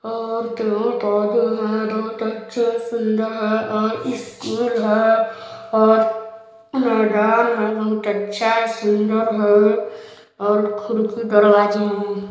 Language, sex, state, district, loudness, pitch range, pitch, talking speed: Hindi, male, Chhattisgarh, Balrampur, -19 LUFS, 215-225 Hz, 220 Hz, 100 wpm